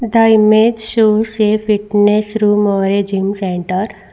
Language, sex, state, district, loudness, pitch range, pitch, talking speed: English, female, Karnataka, Bangalore, -13 LUFS, 195-220 Hz, 210 Hz, 145 wpm